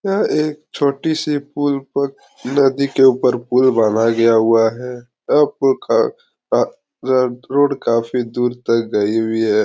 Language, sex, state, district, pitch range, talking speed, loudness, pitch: Hindi, male, Bihar, Araria, 115-145 Hz, 130 wpm, -17 LUFS, 130 Hz